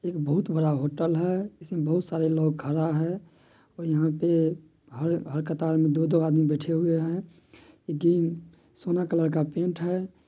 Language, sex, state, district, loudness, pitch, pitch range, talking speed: Maithili, male, Bihar, Madhepura, -26 LUFS, 165 Hz, 155-170 Hz, 150 wpm